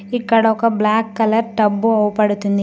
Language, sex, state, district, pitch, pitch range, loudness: Telugu, female, Telangana, Mahabubabad, 220 Hz, 210-225 Hz, -16 LUFS